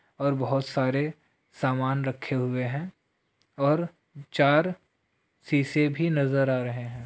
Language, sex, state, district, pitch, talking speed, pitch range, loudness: Hindi, male, Bihar, Jamui, 140 Hz, 125 wpm, 130-150 Hz, -27 LUFS